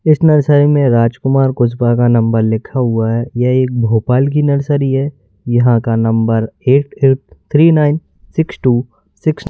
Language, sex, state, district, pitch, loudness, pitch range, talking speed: Hindi, male, Madhya Pradesh, Bhopal, 130 Hz, -13 LUFS, 115-145 Hz, 170 wpm